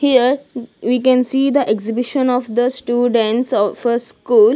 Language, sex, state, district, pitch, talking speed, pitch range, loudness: English, female, Punjab, Kapurthala, 250 Hz, 160 wpm, 240-260 Hz, -16 LUFS